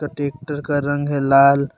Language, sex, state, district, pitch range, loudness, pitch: Hindi, male, Jharkhand, Deoghar, 140-145 Hz, -18 LUFS, 145 Hz